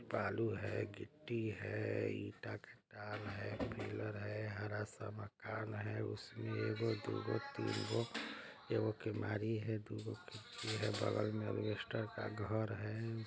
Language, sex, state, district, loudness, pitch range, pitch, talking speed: Hindi, male, Bihar, Vaishali, -43 LUFS, 105-110 Hz, 110 Hz, 130 wpm